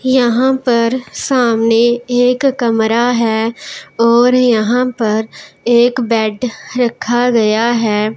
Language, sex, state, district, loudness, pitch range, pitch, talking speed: Hindi, male, Punjab, Pathankot, -13 LUFS, 225-250 Hz, 240 Hz, 105 wpm